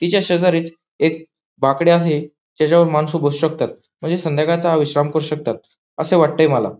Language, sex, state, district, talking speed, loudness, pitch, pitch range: Marathi, male, Maharashtra, Pune, 160 wpm, -17 LUFS, 160 Hz, 150-170 Hz